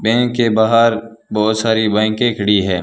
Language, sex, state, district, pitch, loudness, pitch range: Hindi, male, Rajasthan, Bikaner, 110 Hz, -15 LUFS, 110-115 Hz